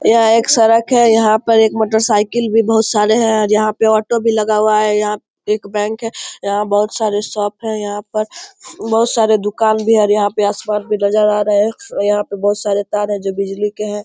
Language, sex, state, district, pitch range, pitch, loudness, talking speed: Hindi, male, Bihar, Samastipur, 210-225 Hz, 215 Hz, -14 LUFS, 240 wpm